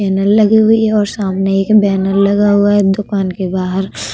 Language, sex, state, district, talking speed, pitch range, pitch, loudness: Hindi, female, Uttar Pradesh, Budaun, 190 wpm, 190-205 Hz, 200 Hz, -12 LUFS